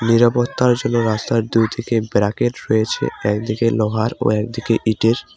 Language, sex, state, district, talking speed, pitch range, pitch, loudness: Bengali, male, West Bengal, Cooch Behar, 135 wpm, 110-120 Hz, 115 Hz, -18 LUFS